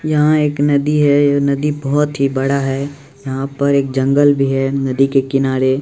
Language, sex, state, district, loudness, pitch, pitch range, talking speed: Maithili, male, Bihar, Supaul, -15 LUFS, 140 Hz, 135-145 Hz, 195 wpm